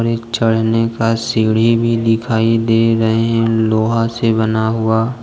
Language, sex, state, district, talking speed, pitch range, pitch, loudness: Hindi, male, Jharkhand, Deoghar, 140 wpm, 110-115 Hz, 115 Hz, -15 LUFS